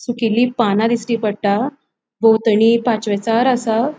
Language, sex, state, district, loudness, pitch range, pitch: Konkani, female, Goa, North and South Goa, -16 LUFS, 220-240 Hz, 230 Hz